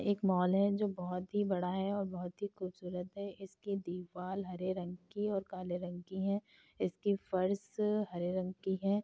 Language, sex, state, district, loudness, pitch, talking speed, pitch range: Hindi, female, Uttar Pradesh, Hamirpur, -37 LUFS, 190 Hz, 190 wpm, 180-200 Hz